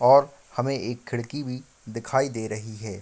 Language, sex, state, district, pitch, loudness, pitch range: Hindi, male, Bihar, Kishanganj, 120 Hz, -27 LUFS, 110-135 Hz